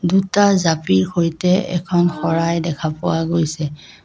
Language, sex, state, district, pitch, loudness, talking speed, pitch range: Assamese, female, Assam, Kamrup Metropolitan, 165 Hz, -18 LUFS, 120 wpm, 160-180 Hz